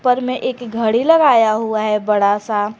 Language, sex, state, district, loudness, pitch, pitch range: Hindi, female, Jharkhand, Garhwa, -16 LUFS, 225 Hz, 210-250 Hz